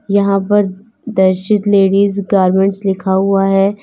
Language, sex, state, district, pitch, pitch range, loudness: Hindi, female, Uttar Pradesh, Lalitpur, 195 Hz, 195-200 Hz, -13 LUFS